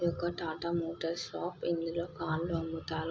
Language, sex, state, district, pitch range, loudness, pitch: Telugu, female, Andhra Pradesh, Guntur, 165-170 Hz, -36 LUFS, 170 Hz